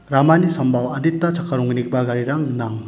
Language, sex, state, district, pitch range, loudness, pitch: Garo, male, Meghalaya, West Garo Hills, 125-160 Hz, -19 LUFS, 130 Hz